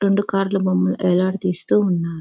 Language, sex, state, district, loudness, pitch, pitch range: Telugu, female, Andhra Pradesh, Visakhapatnam, -19 LUFS, 185 Hz, 170-195 Hz